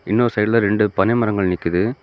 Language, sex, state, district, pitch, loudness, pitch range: Tamil, male, Tamil Nadu, Kanyakumari, 105 Hz, -18 LUFS, 95-115 Hz